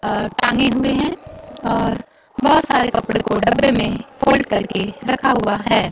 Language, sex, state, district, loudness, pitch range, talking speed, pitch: Hindi, female, Bihar, Kaimur, -18 LUFS, 220-270 Hz, 170 wpm, 240 Hz